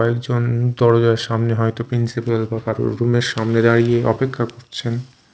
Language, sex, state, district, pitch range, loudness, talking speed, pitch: Bengali, male, Odisha, Khordha, 115-120 Hz, -19 LUFS, 145 wpm, 115 Hz